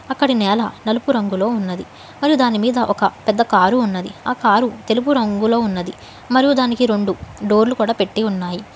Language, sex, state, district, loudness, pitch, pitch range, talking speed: Telugu, female, Telangana, Hyderabad, -17 LUFS, 220 Hz, 205-245 Hz, 165 wpm